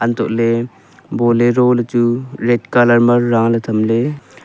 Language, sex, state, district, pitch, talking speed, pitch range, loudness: Wancho, male, Arunachal Pradesh, Longding, 120 Hz, 120 wpm, 115-120 Hz, -14 LUFS